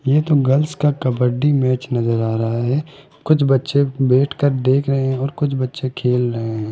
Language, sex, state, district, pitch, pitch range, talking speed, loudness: Hindi, male, Rajasthan, Jaipur, 130 Hz, 125-140 Hz, 195 wpm, -18 LUFS